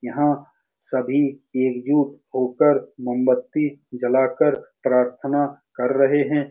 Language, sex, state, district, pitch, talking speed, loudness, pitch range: Hindi, male, Bihar, Saran, 135 Hz, 110 wpm, -21 LUFS, 125-145 Hz